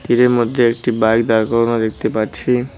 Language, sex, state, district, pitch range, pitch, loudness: Bengali, male, West Bengal, Cooch Behar, 110-120 Hz, 115 Hz, -16 LUFS